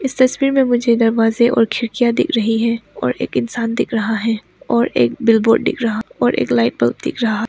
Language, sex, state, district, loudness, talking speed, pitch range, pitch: Hindi, female, Arunachal Pradesh, Papum Pare, -16 LUFS, 215 wpm, 220-235 Hz, 230 Hz